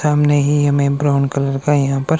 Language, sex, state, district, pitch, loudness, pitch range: Hindi, male, Himachal Pradesh, Shimla, 145 Hz, -16 LUFS, 140-145 Hz